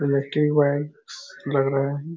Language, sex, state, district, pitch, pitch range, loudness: Hindi, male, Chhattisgarh, Raigarh, 145 Hz, 140-150 Hz, -22 LUFS